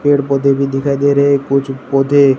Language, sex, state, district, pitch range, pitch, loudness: Hindi, male, Gujarat, Gandhinagar, 135-140 Hz, 140 Hz, -14 LUFS